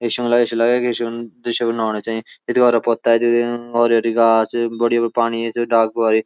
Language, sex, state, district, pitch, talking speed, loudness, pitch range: Garhwali, male, Uttarakhand, Uttarkashi, 115 Hz, 200 wpm, -18 LUFS, 115-120 Hz